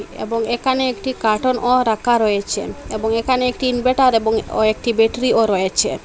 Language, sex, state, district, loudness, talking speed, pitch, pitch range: Bengali, female, Assam, Hailakandi, -18 LUFS, 160 wpm, 235 Hz, 220-255 Hz